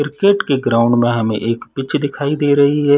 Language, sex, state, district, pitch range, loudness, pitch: Hindi, male, Chhattisgarh, Sarguja, 120-145 Hz, -16 LUFS, 140 Hz